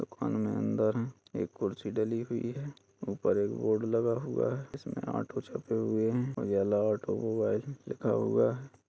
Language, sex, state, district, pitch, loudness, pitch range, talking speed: Hindi, male, Uttar Pradesh, Budaun, 115 Hz, -32 LUFS, 110-125 Hz, 155 wpm